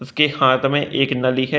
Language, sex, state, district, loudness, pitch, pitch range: Hindi, male, Bihar, Gopalganj, -18 LUFS, 135 Hz, 130-145 Hz